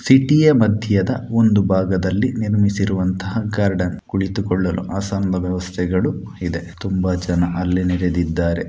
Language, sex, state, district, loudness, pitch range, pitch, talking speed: Kannada, male, Karnataka, Dakshina Kannada, -19 LUFS, 90-100 Hz, 95 Hz, 105 wpm